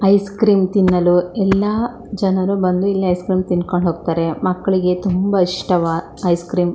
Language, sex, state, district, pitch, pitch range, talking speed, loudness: Kannada, female, Karnataka, Shimoga, 185 Hz, 180-195 Hz, 150 wpm, -17 LUFS